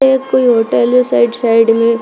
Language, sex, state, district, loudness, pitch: Hindi, female, Uttar Pradesh, Shamli, -11 LUFS, 230 Hz